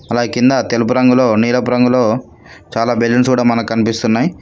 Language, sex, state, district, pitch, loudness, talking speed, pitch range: Telugu, male, Telangana, Mahabubabad, 120 Hz, -14 LUFS, 150 wpm, 115-125 Hz